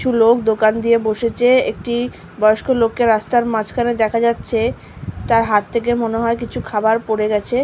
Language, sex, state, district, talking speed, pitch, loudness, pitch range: Bengali, female, West Bengal, Malda, 165 wpm, 230 Hz, -17 LUFS, 220-240 Hz